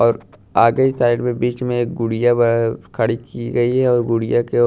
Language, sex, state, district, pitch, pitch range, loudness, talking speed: Hindi, male, Maharashtra, Washim, 120 Hz, 115-120 Hz, -18 LUFS, 205 wpm